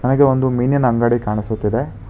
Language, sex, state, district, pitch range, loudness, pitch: Kannada, male, Karnataka, Bangalore, 105-130 Hz, -17 LUFS, 120 Hz